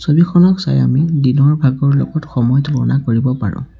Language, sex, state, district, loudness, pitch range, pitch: Assamese, male, Assam, Sonitpur, -14 LUFS, 120-150 Hz, 135 Hz